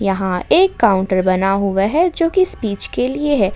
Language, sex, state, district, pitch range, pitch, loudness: Hindi, female, Jharkhand, Ranchi, 195-300 Hz, 205 Hz, -16 LUFS